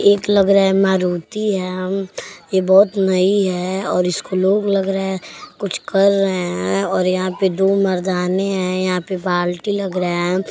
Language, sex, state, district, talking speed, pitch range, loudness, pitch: Bhojpuri, female, Uttar Pradesh, Deoria, 190 wpm, 185-195 Hz, -18 LUFS, 190 Hz